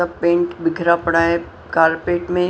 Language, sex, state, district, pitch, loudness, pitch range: Hindi, female, Punjab, Pathankot, 170 Hz, -18 LUFS, 165-175 Hz